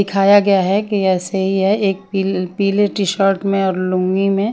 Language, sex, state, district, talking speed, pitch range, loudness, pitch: Hindi, female, Haryana, Rohtak, 210 wpm, 190-200 Hz, -16 LUFS, 195 Hz